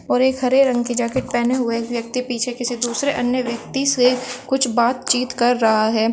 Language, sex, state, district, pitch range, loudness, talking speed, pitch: Hindi, female, Uttar Pradesh, Shamli, 235-255 Hz, -19 LUFS, 205 wpm, 245 Hz